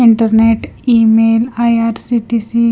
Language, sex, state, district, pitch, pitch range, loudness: Hindi, female, Punjab, Kapurthala, 230 Hz, 225-235 Hz, -12 LUFS